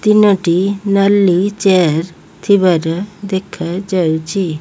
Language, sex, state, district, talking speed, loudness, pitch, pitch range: Odia, female, Odisha, Malkangiri, 65 wpm, -14 LUFS, 190 Hz, 170-200 Hz